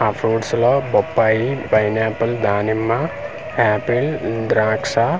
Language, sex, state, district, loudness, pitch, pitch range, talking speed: Telugu, male, Andhra Pradesh, Manyam, -18 LUFS, 115 Hz, 110-120 Hz, 105 wpm